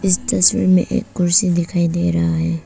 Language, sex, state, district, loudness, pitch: Hindi, female, Arunachal Pradesh, Papum Pare, -16 LUFS, 175 Hz